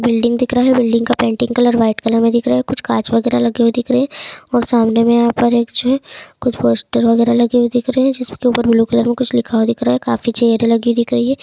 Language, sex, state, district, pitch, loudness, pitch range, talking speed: Hindi, female, Uttar Pradesh, Muzaffarnagar, 235 Hz, -15 LUFS, 230-245 Hz, 280 wpm